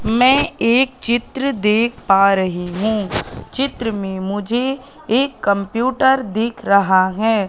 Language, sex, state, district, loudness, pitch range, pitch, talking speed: Hindi, female, Madhya Pradesh, Katni, -17 LUFS, 200-260 Hz, 225 Hz, 120 wpm